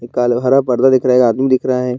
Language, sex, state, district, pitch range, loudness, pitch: Hindi, male, Bihar, Bhagalpur, 125-130 Hz, -13 LUFS, 125 Hz